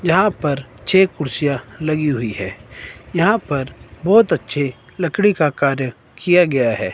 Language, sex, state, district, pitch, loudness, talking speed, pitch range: Hindi, male, Himachal Pradesh, Shimla, 145 Hz, -18 LUFS, 145 wpm, 130-175 Hz